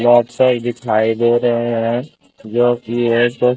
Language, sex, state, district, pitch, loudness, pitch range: Hindi, male, Rajasthan, Bikaner, 120 Hz, -16 LUFS, 115-120 Hz